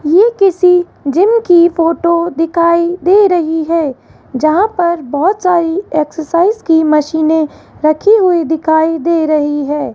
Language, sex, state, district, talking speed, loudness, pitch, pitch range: Hindi, female, Rajasthan, Jaipur, 135 wpm, -12 LUFS, 335 Hz, 315-360 Hz